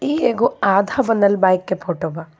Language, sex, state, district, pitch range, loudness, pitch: Bhojpuri, female, Jharkhand, Palamu, 185-205 Hz, -18 LUFS, 195 Hz